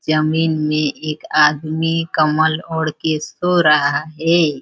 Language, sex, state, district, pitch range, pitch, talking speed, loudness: Hindi, female, Chhattisgarh, Balrampur, 150-160 Hz, 155 Hz, 130 wpm, -17 LUFS